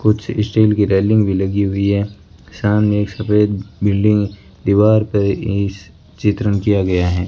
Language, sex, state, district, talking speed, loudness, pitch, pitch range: Hindi, male, Rajasthan, Bikaner, 155 wpm, -16 LUFS, 100 Hz, 95-105 Hz